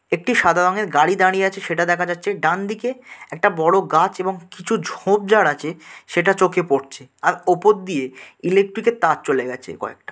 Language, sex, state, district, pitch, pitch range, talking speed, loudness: Bengali, male, West Bengal, Dakshin Dinajpur, 185 Hz, 170-205 Hz, 170 wpm, -19 LUFS